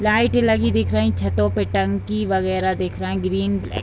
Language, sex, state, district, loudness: Hindi, female, Bihar, Bhagalpur, -20 LUFS